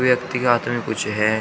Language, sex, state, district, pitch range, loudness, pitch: Hindi, male, Uttar Pradesh, Shamli, 110-125 Hz, -21 LUFS, 120 Hz